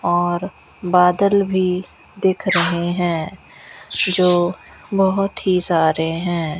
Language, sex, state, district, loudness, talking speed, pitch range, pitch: Hindi, female, Rajasthan, Bikaner, -18 LUFS, 100 wpm, 175-190 Hz, 180 Hz